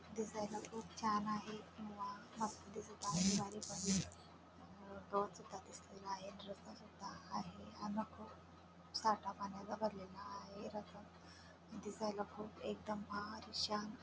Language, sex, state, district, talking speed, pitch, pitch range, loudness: Marathi, female, Maharashtra, Dhule, 120 wpm, 205 Hz, 200-215 Hz, -44 LUFS